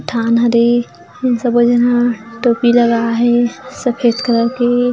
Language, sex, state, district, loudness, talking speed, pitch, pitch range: Chhattisgarhi, female, Chhattisgarh, Jashpur, -14 LUFS, 185 wpm, 240 Hz, 235-240 Hz